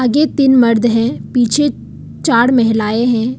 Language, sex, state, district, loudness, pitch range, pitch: Hindi, female, Arunachal Pradesh, Papum Pare, -13 LUFS, 230-260 Hz, 245 Hz